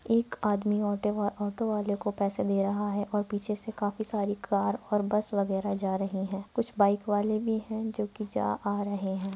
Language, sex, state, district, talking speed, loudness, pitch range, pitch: Hindi, female, Uttar Pradesh, Muzaffarnagar, 210 wpm, -30 LUFS, 200-215 Hz, 205 Hz